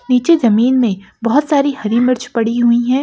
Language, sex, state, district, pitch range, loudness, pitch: Hindi, female, Jharkhand, Sahebganj, 230-265 Hz, -14 LUFS, 245 Hz